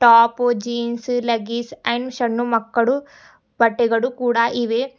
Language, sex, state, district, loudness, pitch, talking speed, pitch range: Kannada, female, Karnataka, Bidar, -19 LUFS, 235 Hz, 110 wpm, 235-245 Hz